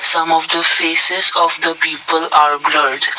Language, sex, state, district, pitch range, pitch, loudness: English, male, Assam, Kamrup Metropolitan, 160-170 Hz, 165 Hz, -13 LUFS